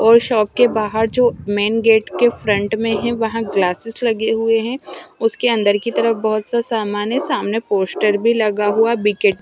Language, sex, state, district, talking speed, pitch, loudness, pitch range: Hindi, male, Punjab, Fazilka, 200 wpm, 225 Hz, -17 LUFS, 210-235 Hz